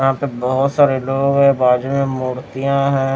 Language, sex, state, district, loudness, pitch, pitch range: Hindi, male, Himachal Pradesh, Shimla, -16 LUFS, 135 Hz, 130-140 Hz